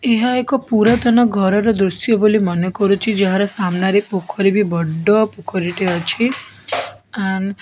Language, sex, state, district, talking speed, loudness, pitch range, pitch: Odia, female, Odisha, Khordha, 155 wpm, -17 LUFS, 190-220 Hz, 200 Hz